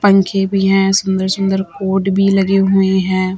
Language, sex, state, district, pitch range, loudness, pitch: Hindi, female, Chhattisgarh, Raipur, 190-195 Hz, -14 LUFS, 195 Hz